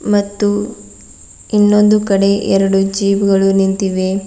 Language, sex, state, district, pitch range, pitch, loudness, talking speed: Kannada, female, Karnataka, Bidar, 195-205 Hz, 200 Hz, -13 LUFS, 100 wpm